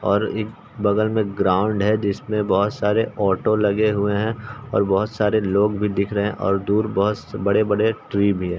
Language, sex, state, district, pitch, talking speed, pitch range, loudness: Hindi, male, Uttar Pradesh, Ghazipur, 105 Hz, 195 wpm, 100-110 Hz, -21 LUFS